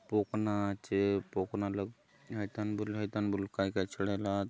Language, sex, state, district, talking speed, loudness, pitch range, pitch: Halbi, male, Chhattisgarh, Bastar, 200 wpm, -35 LUFS, 100-105 Hz, 100 Hz